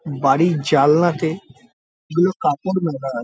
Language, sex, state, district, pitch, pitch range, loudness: Bengali, male, West Bengal, Jalpaiguri, 160 Hz, 140-175 Hz, -18 LUFS